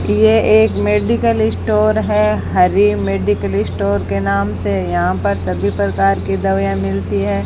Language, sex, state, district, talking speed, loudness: Hindi, female, Rajasthan, Bikaner, 155 wpm, -15 LUFS